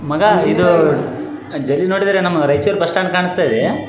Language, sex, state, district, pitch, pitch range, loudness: Kannada, male, Karnataka, Raichur, 180 Hz, 175-195 Hz, -15 LUFS